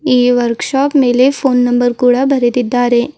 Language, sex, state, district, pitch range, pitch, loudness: Kannada, female, Karnataka, Bidar, 245-265 Hz, 245 Hz, -12 LUFS